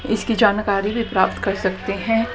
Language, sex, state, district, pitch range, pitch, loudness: Hindi, female, Haryana, Jhajjar, 195-225 Hz, 205 Hz, -20 LUFS